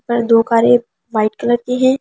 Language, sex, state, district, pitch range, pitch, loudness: Hindi, female, Delhi, New Delhi, 230-245 Hz, 235 Hz, -15 LUFS